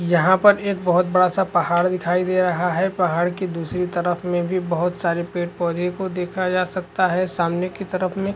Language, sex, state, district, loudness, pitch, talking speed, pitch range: Hindi, female, Chhattisgarh, Rajnandgaon, -21 LUFS, 180 Hz, 225 wpm, 175-185 Hz